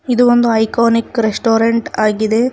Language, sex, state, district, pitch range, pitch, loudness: Kannada, female, Karnataka, Koppal, 220-240 Hz, 230 Hz, -14 LUFS